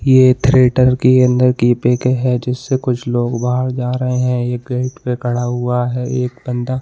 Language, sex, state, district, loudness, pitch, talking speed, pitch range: Hindi, male, Bihar, Saran, -15 LUFS, 125 Hz, 210 wpm, 125-130 Hz